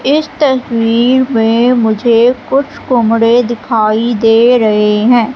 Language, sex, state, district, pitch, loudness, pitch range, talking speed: Hindi, female, Madhya Pradesh, Katni, 235 Hz, -10 LUFS, 225-250 Hz, 110 wpm